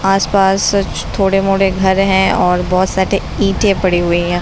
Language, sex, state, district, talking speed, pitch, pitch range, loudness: Hindi, female, Bihar, Saran, 165 wpm, 195 Hz, 185-195 Hz, -13 LUFS